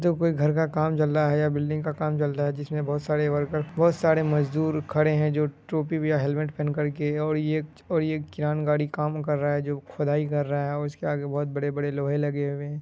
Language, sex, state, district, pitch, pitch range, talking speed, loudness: Hindi, male, Bihar, Kishanganj, 150 Hz, 145-155 Hz, 255 wpm, -26 LUFS